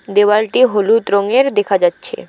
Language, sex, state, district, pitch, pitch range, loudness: Bengali, female, West Bengal, Alipurduar, 210 Hz, 200-250 Hz, -13 LUFS